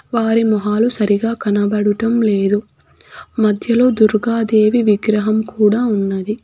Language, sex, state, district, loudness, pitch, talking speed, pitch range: Telugu, female, Telangana, Hyderabad, -15 LUFS, 215 Hz, 100 wpm, 210-230 Hz